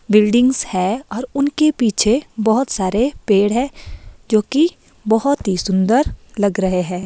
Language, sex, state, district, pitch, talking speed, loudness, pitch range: Hindi, female, Himachal Pradesh, Shimla, 225 Hz, 135 wpm, -17 LUFS, 200-265 Hz